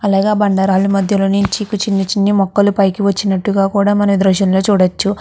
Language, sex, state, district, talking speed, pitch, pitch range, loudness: Telugu, female, Andhra Pradesh, Guntur, 185 wpm, 200 Hz, 195-205 Hz, -14 LUFS